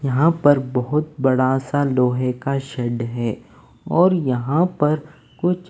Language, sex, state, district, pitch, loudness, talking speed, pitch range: Hindi, male, Maharashtra, Mumbai Suburban, 140 Hz, -20 LUFS, 135 wpm, 125-155 Hz